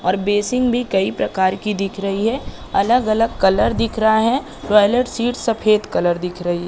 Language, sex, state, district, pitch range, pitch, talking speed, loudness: Hindi, female, Madhya Pradesh, Katni, 190-230 Hz, 210 Hz, 190 wpm, -18 LUFS